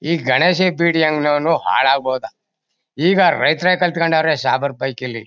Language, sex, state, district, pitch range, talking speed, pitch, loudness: Kannada, male, Karnataka, Mysore, 135-170 Hz, 135 wpm, 155 Hz, -16 LUFS